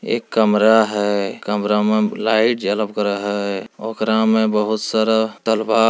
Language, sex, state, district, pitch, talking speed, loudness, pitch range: Hindi, male, Bihar, Jamui, 110 Hz, 150 wpm, -18 LUFS, 105-110 Hz